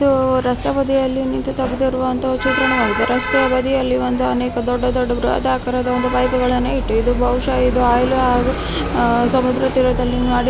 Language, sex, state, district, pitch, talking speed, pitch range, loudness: Kannada, female, Karnataka, Bellary, 250 Hz, 135 wpm, 245-260 Hz, -16 LUFS